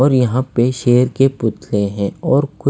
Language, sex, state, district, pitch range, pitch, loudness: Hindi, male, Himachal Pradesh, Shimla, 120-135 Hz, 125 Hz, -16 LUFS